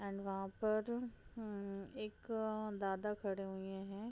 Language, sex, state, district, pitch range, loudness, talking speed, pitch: Hindi, female, Bihar, Gopalganj, 195-215 Hz, -43 LUFS, 130 wpm, 200 Hz